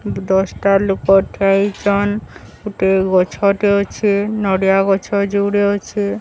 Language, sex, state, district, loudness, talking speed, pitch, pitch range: Odia, male, Odisha, Sambalpur, -16 LUFS, 115 wpm, 195 Hz, 190-200 Hz